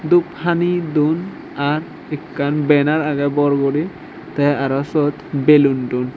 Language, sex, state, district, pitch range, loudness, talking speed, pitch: Chakma, male, Tripura, Dhalai, 140-155 Hz, -17 LUFS, 135 wpm, 145 Hz